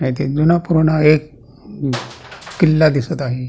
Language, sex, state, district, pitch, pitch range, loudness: Marathi, male, Maharashtra, Pune, 150 Hz, 135-155 Hz, -16 LUFS